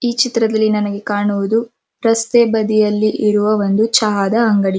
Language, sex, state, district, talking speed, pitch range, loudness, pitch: Kannada, female, Karnataka, Dharwad, 125 wpm, 205-230 Hz, -15 LUFS, 215 Hz